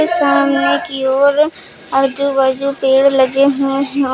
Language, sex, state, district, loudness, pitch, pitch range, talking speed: Hindi, female, Uttar Pradesh, Lucknow, -14 LUFS, 270 Hz, 265-275 Hz, 145 wpm